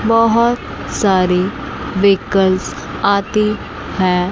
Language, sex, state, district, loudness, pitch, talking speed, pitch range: Hindi, female, Chandigarh, Chandigarh, -16 LUFS, 200 Hz, 70 wpm, 185-215 Hz